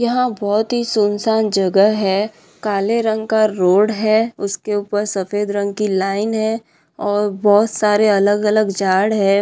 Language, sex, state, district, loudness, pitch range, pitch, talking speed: Hindi, female, Bihar, Madhepura, -17 LUFS, 200-220 Hz, 205 Hz, 160 wpm